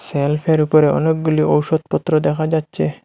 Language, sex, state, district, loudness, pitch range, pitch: Bengali, male, Assam, Hailakandi, -17 LUFS, 150-160 Hz, 155 Hz